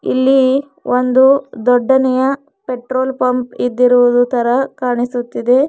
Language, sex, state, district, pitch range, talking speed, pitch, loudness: Kannada, female, Karnataka, Bidar, 245-265 Hz, 95 wpm, 255 Hz, -14 LUFS